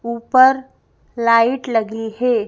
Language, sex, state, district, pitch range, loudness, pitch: Hindi, female, Madhya Pradesh, Bhopal, 225-255 Hz, -16 LUFS, 235 Hz